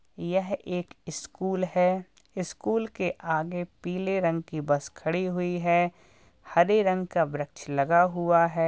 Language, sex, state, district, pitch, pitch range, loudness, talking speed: Hindi, male, Uttar Pradesh, Jalaun, 175 Hz, 165-185 Hz, -27 LUFS, 145 wpm